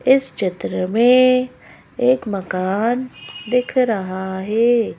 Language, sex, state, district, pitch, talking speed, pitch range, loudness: Hindi, female, Madhya Pradesh, Bhopal, 235 Hz, 95 wpm, 190-255 Hz, -18 LUFS